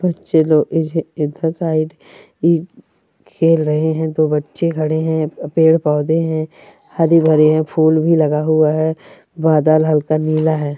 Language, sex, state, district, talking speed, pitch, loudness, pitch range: Hindi, female, Chhattisgarh, Raigarh, 155 wpm, 155 Hz, -16 LUFS, 155-165 Hz